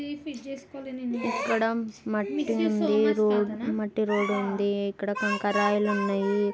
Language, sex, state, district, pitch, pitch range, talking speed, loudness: Telugu, male, Andhra Pradesh, Guntur, 210 Hz, 205-230 Hz, 75 wpm, -27 LUFS